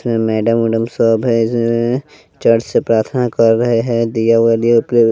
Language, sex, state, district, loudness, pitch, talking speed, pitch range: Hindi, male, Bihar, West Champaran, -14 LUFS, 115 Hz, 130 wpm, 115-120 Hz